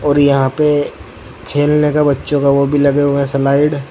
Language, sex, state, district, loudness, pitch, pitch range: Hindi, male, Uttar Pradesh, Saharanpur, -13 LUFS, 140 Hz, 140-145 Hz